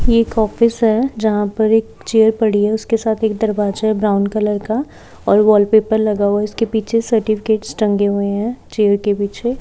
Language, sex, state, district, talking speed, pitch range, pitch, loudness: Hindi, female, Haryana, Charkhi Dadri, 205 wpm, 205-225 Hz, 220 Hz, -16 LUFS